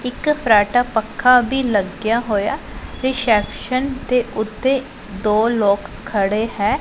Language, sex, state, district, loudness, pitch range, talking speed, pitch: Punjabi, female, Punjab, Pathankot, -18 LUFS, 210-250 Hz, 115 wpm, 230 Hz